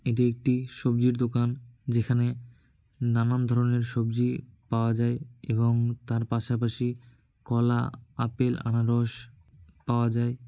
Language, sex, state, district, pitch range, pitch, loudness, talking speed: Bengali, male, West Bengal, Malda, 115-125 Hz, 120 Hz, -27 LUFS, 105 wpm